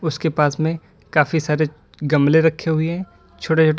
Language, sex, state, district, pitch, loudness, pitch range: Hindi, male, Uttar Pradesh, Lalitpur, 160 Hz, -19 LUFS, 150-160 Hz